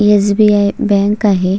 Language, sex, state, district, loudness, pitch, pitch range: Marathi, female, Maharashtra, Solapur, -12 LUFS, 205 Hz, 200-210 Hz